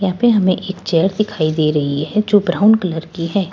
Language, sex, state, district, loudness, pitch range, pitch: Hindi, female, Bihar, Katihar, -16 LUFS, 165-205 Hz, 185 Hz